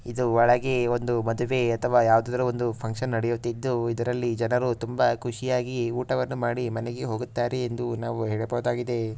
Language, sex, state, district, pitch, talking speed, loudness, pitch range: Kannada, male, Karnataka, Shimoga, 120 Hz, 125 wpm, -26 LUFS, 115-125 Hz